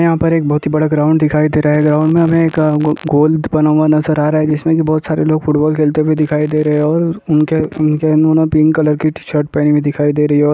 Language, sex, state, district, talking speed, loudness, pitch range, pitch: Hindi, male, Bihar, Saharsa, 280 wpm, -13 LUFS, 150-155 Hz, 155 Hz